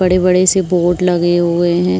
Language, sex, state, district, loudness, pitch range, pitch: Hindi, female, Uttar Pradesh, Jyotiba Phule Nagar, -13 LUFS, 175-185 Hz, 175 Hz